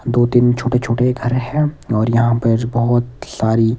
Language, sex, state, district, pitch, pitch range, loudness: Hindi, male, Himachal Pradesh, Shimla, 120 Hz, 115-125 Hz, -16 LUFS